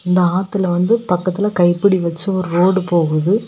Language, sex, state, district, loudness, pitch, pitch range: Tamil, female, Tamil Nadu, Kanyakumari, -16 LUFS, 185 Hz, 175-195 Hz